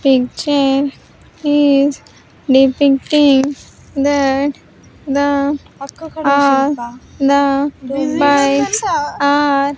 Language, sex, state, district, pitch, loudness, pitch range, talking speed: English, female, Andhra Pradesh, Sri Satya Sai, 280 Hz, -14 LUFS, 275-290 Hz, 55 wpm